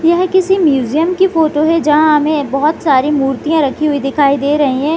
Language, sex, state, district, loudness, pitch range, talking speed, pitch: Hindi, female, Bihar, Gopalganj, -12 LUFS, 280-325 Hz, 205 wpm, 300 Hz